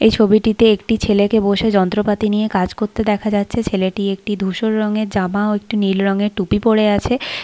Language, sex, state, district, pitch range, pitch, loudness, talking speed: Bengali, female, West Bengal, Paschim Medinipur, 200-220 Hz, 210 Hz, -17 LUFS, 195 wpm